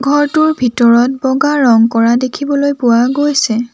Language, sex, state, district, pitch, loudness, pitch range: Assamese, female, Assam, Sonitpur, 260 Hz, -12 LUFS, 235-285 Hz